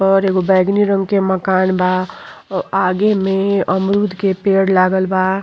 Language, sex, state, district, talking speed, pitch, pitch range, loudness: Bhojpuri, female, Uttar Pradesh, Gorakhpur, 165 wpm, 190 Hz, 185-195 Hz, -15 LUFS